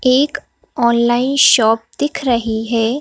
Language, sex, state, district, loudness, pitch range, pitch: Hindi, female, Madhya Pradesh, Bhopal, -15 LUFS, 230-280 Hz, 240 Hz